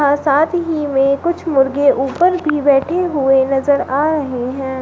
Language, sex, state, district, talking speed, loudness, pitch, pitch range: Hindi, female, Uttar Pradesh, Shamli, 175 wpm, -15 LUFS, 285 Hz, 270-315 Hz